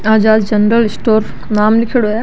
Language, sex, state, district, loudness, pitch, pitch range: Marwari, female, Rajasthan, Nagaur, -12 LUFS, 220 Hz, 210-225 Hz